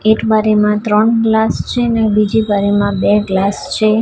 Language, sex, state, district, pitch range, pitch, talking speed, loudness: Gujarati, female, Gujarat, Gandhinagar, 205-220 Hz, 215 Hz, 165 wpm, -13 LUFS